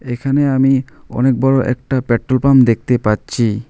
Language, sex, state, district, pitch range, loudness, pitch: Bengali, male, West Bengal, Alipurduar, 120-135 Hz, -15 LUFS, 130 Hz